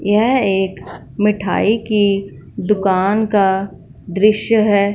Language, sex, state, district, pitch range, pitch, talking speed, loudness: Hindi, female, Punjab, Fazilka, 190-210 Hz, 200 Hz, 95 wpm, -16 LUFS